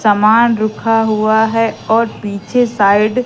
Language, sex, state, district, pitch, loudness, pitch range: Hindi, female, Madhya Pradesh, Katni, 220 Hz, -13 LUFS, 215-225 Hz